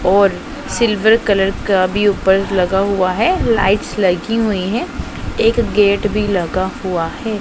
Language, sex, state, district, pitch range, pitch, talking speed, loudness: Hindi, female, Punjab, Pathankot, 190-215 Hz, 200 Hz, 155 wpm, -16 LUFS